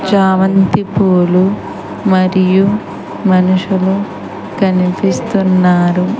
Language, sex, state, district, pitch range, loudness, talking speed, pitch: Telugu, female, Andhra Pradesh, Sri Satya Sai, 185-195 Hz, -12 LUFS, 50 wpm, 190 Hz